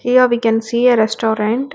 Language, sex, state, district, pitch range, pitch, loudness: English, female, Telangana, Hyderabad, 225-250 Hz, 235 Hz, -15 LUFS